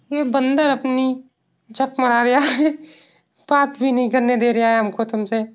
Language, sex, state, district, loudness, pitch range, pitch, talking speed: Hindi, male, Uttar Pradesh, Varanasi, -18 LUFS, 235-280 Hz, 260 Hz, 160 wpm